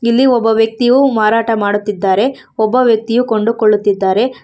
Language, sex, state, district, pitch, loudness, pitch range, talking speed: Kannada, female, Karnataka, Bangalore, 225 Hz, -13 LUFS, 210-245 Hz, 110 wpm